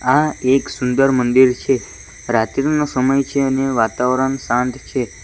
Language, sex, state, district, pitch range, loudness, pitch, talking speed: Gujarati, male, Gujarat, Valsad, 120-135 Hz, -17 LUFS, 130 Hz, 135 wpm